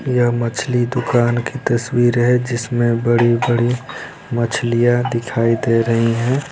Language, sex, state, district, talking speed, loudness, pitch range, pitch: Hindi, male, Bihar, Araria, 120 wpm, -17 LUFS, 115-125 Hz, 120 Hz